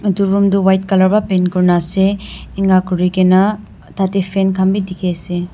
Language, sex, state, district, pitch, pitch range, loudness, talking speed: Nagamese, female, Nagaland, Dimapur, 190 Hz, 185-195 Hz, -14 LUFS, 185 wpm